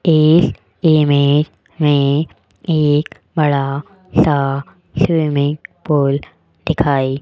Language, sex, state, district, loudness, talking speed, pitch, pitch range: Hindi, male, Rajasthan, Jaipur, -16 LUFS, 85 wpm, 145 Hz, 140-155 Hz